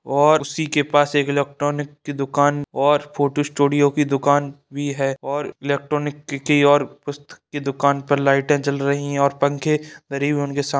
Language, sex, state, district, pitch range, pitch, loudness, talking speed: Hindi, male, Bihar, Madhepura, 140-145 Hz, 145 Hz, -20 LUFS, 185 wpm